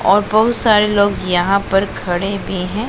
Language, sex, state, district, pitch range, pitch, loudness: Hindi, female, Punjab, Pathankot, 190-210 Hz, 200 Hz, -15 LUFS